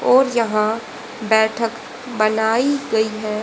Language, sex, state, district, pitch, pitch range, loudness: Hindi, female, Haryana, Rohtak, 220 Hz, 215-235 Hz, -19 LUFS